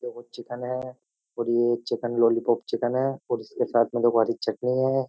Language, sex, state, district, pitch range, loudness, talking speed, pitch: Hindi, male, Uttar Pradesh, Jyotiba Phule Nagar, 120-125 Hz, -25 LUFS, 210 wpm, 120 Hz